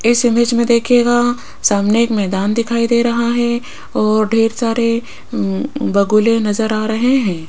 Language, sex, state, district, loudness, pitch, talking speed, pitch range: Hindi, female, Rajasthan, Jaipur, -15 LUFS, 230 Hz, 150 wpm, 215-235 Hz